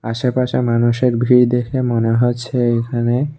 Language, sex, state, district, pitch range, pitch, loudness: Bengali, male, Tripura, West Tripura, 120-125 Hz, 120 Hz, -16 LUFS